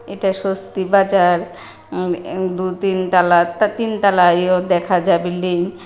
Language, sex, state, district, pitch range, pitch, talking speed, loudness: Bengali, female, Tripura, West Tripura, 180-195 Hz, 185 Hz, 155 wpm, -17 LUFS